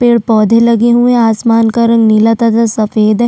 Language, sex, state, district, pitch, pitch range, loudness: Hindi, female, Chhattisgarh, Sukma, 230 Hz, 220-235 Hz, -9 LUFS